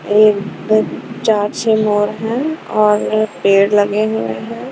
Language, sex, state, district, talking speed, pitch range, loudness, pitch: Hindi, female, Punjab, Kapurthala, 115 wpm, 205-220 Hz, -15 LUFS, 215 Hz